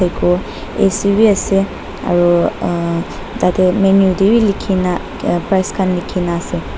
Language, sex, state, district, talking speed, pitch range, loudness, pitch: Nagamese, female, Nagaland, Dimapur, 135 wpm, 175-195 Hz, -15 LUFS, 185 Hz